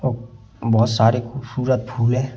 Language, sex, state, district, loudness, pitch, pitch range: Hindi, male, Madhya Pradesh, Bhopal, -20 LUFS, 120 Hz, 115-125 Hz